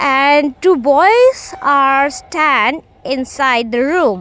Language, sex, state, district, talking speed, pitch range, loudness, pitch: English, female, Punjab, Kapurthala, 115 wpm, 270-320 Hz, -13 LUFS, 280 Hz